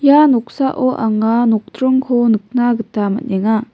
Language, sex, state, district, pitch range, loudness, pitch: Garo, female, Meghalaya, West Garo Hills, 220-260 Hz, -15 LUFS, 235 Hz